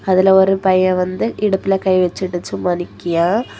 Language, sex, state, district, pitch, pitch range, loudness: Tamil, female, Tamil Nadu, Kanyakumari, 185 Hz, 180-195 Hz, -16 LUFS